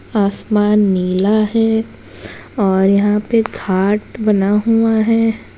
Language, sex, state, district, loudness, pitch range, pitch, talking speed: Hindi, female, Bihar, Jamui, -15 LUFS, 200-225 Hz, 210 Hz, 110 wpm